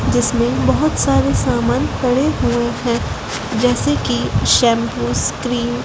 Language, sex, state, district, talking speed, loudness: Hindi, female, Madhya Pradesh, Dhar, 125 wpm, -17 LUFS